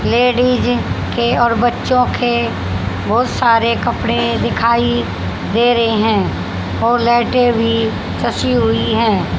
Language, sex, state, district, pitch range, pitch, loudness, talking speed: Hindi, female, Haryana, Rohtak, 215-240 Hz, 235 Hz, -15 LUFS, 115 wpm